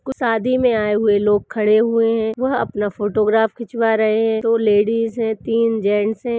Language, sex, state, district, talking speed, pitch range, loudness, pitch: Hindi, female, Uttarakhand, Uttarkashi, 190 wpm, 215-230 Hz, -18 LUFS, 225 Hz